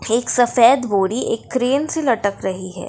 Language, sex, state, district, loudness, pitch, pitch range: Hindi, female, Bihar, Darbhanga, -18 LUFS, 240 Hz, 200-250 Hz